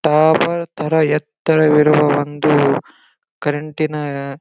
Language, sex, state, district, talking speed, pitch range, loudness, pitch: Kannada, male, Karnataka, Gulbarga, 110 wpm, 145-155 Hz, -16 LUFS, 150 Hz